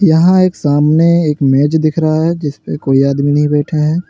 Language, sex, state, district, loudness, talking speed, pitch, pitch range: Hindi, male, Uttar Pradesh, Lalitpur, -12 LUFS, 220 wpm, 155 Hz, 145-165 Hz